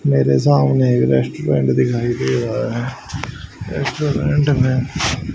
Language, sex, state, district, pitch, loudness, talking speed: Hindi, male, Haryana, Rohtak, 105 Hz, -17 LUFS, 110 wpm